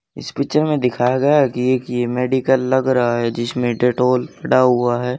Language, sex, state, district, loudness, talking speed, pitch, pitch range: Hindi, male, Haryana, Charkhi Dadri, -17 LUFS, 195 wpm, 125 Hz, 120-130 Hz